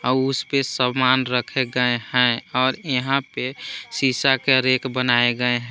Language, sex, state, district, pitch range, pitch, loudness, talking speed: Hindi, male, Jharkhand, Palamu, 125-135 Hz, 130 Hz, -20 LUFS, 155 wpm